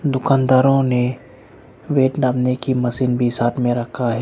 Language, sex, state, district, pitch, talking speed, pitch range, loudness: Hindi, male, Arunachal Pradesh, Lower Dibang Valley, 125 Hz, 155 wpm, 120-130 Hz, -18 LUFS